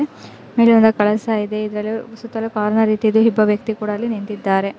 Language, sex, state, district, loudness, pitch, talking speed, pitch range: Kannada, female, Karnataka, Belgaum, -17 LUFS, 215 Hz, 175 wpm, 210-225 Hz